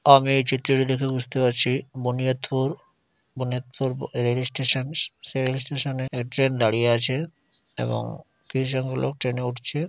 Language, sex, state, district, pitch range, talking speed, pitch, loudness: Bengali, male, West Bengal, Dakshin Dinajpur, 125-135 Hz, 125 wpm, 130 Hz, -24 LUFS